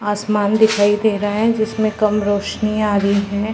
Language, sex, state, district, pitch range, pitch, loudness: Hindi, female, Bihar, Sitamarhi, 205-215 Hz, 210 Hz, -17 LUFS